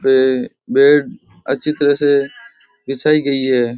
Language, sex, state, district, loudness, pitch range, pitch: Rajasthani, male, Rajasthan, Churu, -15 LUFS, 130-145 Hz, 140 Hz